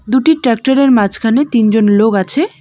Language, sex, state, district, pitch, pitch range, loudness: Bengali, female, West Bengal, Alipurduar, 235 Hz, 215-270 Hz, -11 LUFS